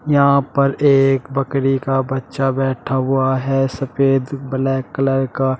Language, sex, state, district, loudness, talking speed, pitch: Hindi, male, Uttar Pradesh, Shamli, -17 LUFS, 140 wpm, 135 Hz